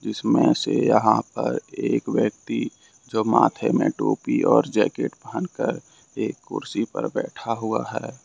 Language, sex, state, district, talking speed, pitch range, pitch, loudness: Hindi, male, Jharkhand, Ranchi, 155 wpm, 110-120 Hz, 115 Hz, -23 LUFS